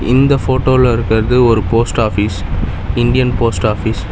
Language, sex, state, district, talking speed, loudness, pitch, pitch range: Tamil, male, Tamil Nadu, Chennai, 145 wpm, -13 LUFS, 115 Hz, 105-125 Hz